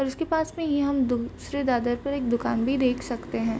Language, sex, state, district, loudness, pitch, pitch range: Hindi, female, Bihar, Vaishali, -26 LUFS, 260 Hz, 240-280 Hz